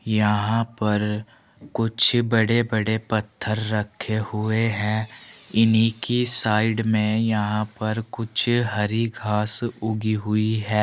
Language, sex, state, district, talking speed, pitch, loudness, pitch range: Hindi, male, Uttar Pradesh, Saharanpur, 115 wpm, 110 Hz, -22 LUFS, 105-115 Hz